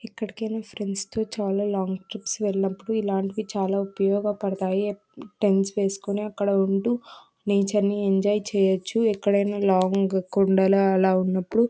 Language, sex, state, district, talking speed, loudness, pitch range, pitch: Telugu, female, Andhra Pradesh, Anantapur, 120 wpm, -24 LUFS, 195-210 Hz, 200 Hz